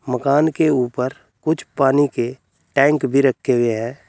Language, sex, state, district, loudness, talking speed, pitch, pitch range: Hindi, male, Uttar Pradesh, Saharanpur, -18 LUFS, 160 wpm, 135 Hz, 125-145 Hz